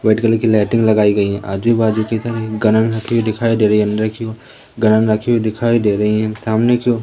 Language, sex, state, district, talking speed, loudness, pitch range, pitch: Hindi, female, Madhya Pradesh, Umaria, 215 wpm, -15 LUFS, 110-115 Hz, 110 Hz